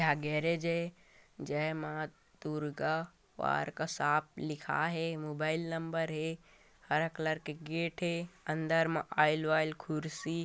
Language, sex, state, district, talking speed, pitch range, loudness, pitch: Hindi, male, Chhattisgarh, Korba, 140 wpm, 155-165 Hz, -35 LUFS, 155 Hz